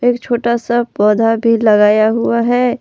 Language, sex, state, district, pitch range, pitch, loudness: Hindi, female, Jharkhand, Palamu, 220-240 Hz, 235 Hz, -13 LUFS